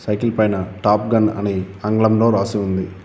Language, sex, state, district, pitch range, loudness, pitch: Telugu, male, Telangana, Komaram Bheem, 95-110 Hz, -18 LUFS, 105 Hz